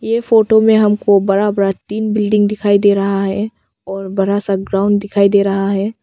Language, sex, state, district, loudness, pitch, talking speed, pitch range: Hindi, female, Arunachal Pradesh, Longding, -14 LUFS, 200 Hz, 200 wpm, 195-210 Hz